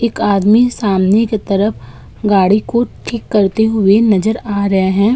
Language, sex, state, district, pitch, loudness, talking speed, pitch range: Hindi, female, Uttar Pradesh, Budaun, 205 Hz, -13 LUFS, 160 wpm, 195-225 Hz